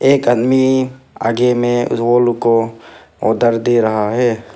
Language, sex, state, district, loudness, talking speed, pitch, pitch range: Hindi, male, Arunachal Pradesh, Papum Pare, -15 LUFS, 130 wpm, 120 Hz, 115-125 Hz